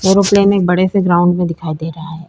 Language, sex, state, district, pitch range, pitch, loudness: Hindi, female, Uttar Pradesh, Budaun, 165-195 Hz, 180 Hz, -13 LUFS